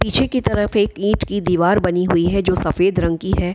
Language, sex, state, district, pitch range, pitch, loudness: Hindi, female, Bihar, Kishanganj, 175-205 Hz, 185 Hz, -17 LUFS